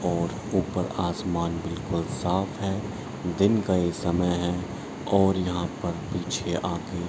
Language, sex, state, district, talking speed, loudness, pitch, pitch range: Hindi, male, Bihar, Araria, 145 wpm, -27 LUFS, 90 Hz, 85-95 Hz